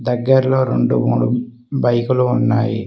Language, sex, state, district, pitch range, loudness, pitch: Telugu, male, Telangana, Mahabubabad, 115-130 Hz, -16 LUFS, 120 Hz